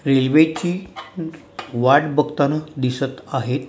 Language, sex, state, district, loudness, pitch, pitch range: Marathi, male, Maharashtra, Mumbai Suburban, -19 LUFS, 150 Hz, 135-155 Hz